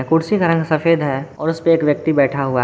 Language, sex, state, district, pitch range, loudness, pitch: Hindi, male, Jharkhand, Garhwa, 140-165 Hz, -17 LUFS, 155 Hz